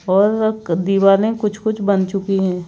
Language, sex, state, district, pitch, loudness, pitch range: Hindi, male, Madhya Pradesh, Bhopal, 195 Hz, -17 LUFS, 190-215 Hz